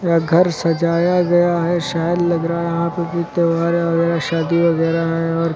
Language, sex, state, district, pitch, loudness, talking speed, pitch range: Hindi, male, Uttar Pradesh, Lucknow, 170 Hz, -17 LUFS, 205 wpm, 165-170 Hz